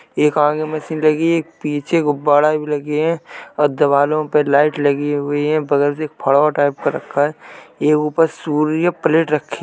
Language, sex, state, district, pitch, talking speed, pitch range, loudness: Hindi, male, Uttar Pradesh, Jalaun, 150 Hz, 195 wpm, 145-155 Hz, -17 LUFS